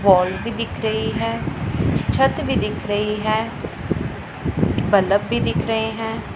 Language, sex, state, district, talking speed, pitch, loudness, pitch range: Hindi, female, Punjab, Pathankot, 140 wpm, 210 Hz, -21 LUFS, 200-220 Hz